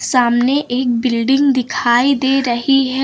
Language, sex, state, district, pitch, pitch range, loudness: Hindi, female, Uttar Pradesh, Lucknow, 255 Hz, 240-270 Hz, -15 LUFS